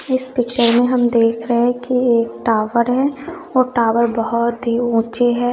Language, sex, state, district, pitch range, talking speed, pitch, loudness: Hindi, female, Bihar, West Champaran, 235-250 Hz, 185 wpm, 240 Hz, -16 LUFS